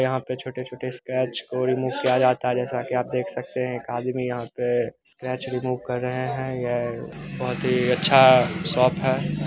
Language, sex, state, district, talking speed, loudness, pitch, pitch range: Hindi, male, Bihar, Begusarai, 185 wpm, -23 LUFS, 125 Hz, 125-130 Hz